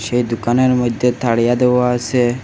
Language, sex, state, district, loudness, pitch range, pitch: Bengali, male, Assam, Hailakandi, -16 LUFS, 120-125 Hz, 125 Hz